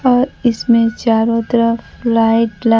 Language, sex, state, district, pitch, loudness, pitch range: Hindi, female, Bihar, Kaimur, 230 Hz, -14 LUFS, 225-235 Hz